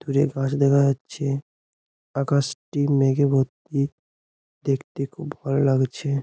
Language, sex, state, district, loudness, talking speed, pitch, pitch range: Bengali, male, West Bengal, Jhargram, -23 LUFS, 105 wpm, 140 Hz, 135-140 Hz